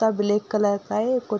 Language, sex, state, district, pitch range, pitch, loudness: Hindi, female, Bihar, Darbhanga, 205-220 Hz, 215 Hz, -23 LUFS